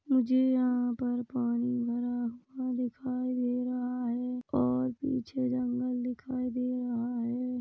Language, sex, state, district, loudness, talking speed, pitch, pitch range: Hindi, female, Chhattisgarh, Rajnandgaon, -32 LUFS, 135 wpm, 250 Hz, 245-255 Hz